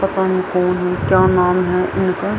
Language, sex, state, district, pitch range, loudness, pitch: Hindi, female, Bihar, Araria, 180-185 Hz, -16 LUFS, 185 Hz